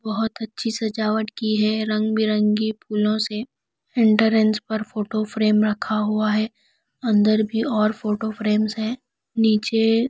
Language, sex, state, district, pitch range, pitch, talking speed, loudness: Hindi, female, Odisha, Nuapada, 215-220 Hz, 215 Hz, 135 wpm, -21 LUFS